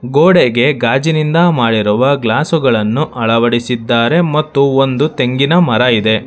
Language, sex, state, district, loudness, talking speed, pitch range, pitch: Kannada, male, Karnataka, Bangalore, -12 LUFS, 95 wpm, 115-150 Hz, 130 Hz